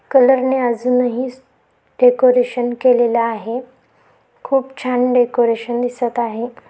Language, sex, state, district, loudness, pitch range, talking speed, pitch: Marathi, female, Maharashtra, Aurangabad, -16 LUFS, 240-255 Hz, 90 wpm, 245 Hz